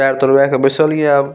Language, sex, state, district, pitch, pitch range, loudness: Maithili, male, Bihar, Saharsa, 140 Hz, 135-145 Hz, -13 LUFS